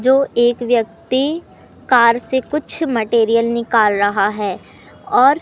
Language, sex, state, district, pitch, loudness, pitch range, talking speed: Hindi, male, Madhya Pradesh, Katni, 235 Hz, -16 LUFS, 225-260 Hz, 120 wpm